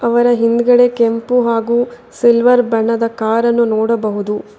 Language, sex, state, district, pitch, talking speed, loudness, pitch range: Kannada, female, Karnataka, Bangalore, 235 Hz, 115 wpm, -14 LUFS, 230-240 Hz